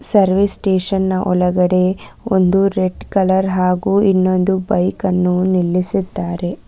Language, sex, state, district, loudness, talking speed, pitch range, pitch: Kannada, female, Karnataka, Bangalore, -16 LUFS, 100 wpm, 180-195 Hz, 185 Hz